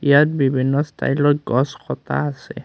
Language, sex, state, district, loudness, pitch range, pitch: Assamese, male, Assam, Kamrup Metropolitan, -19 LUFS, 135-150 Hz, 140 Hz